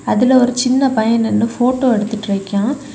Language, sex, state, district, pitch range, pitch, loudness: Tamil, female, Tamil Nadu, Kanyakumari, 220-255 Hz, 240 Hz, -15 LUFS